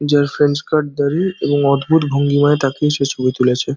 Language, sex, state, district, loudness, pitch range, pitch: Bengali, male, West Bengal, Dakshin Dinajpur, -16 LUFS, 140-150 Hz, 145 Hz